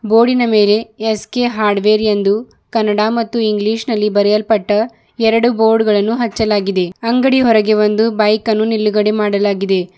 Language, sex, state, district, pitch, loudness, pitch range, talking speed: Kannada, female, Karnataka, Bidar, 215 Hz, -14 LUFS, 210-225 Hz, 120 wpm